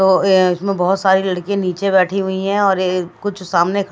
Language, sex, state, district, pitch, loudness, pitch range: Hindi, female, Delhi, New Delhi, 190 Hz, -16 LUFS, 185-195 Hz